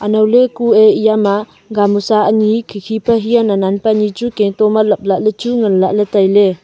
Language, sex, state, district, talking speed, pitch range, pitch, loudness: Wancho, female, Arunachal Pradesh, Longding, 170 wpm, 205-220 Hz, 215 Hz, -13 LUFS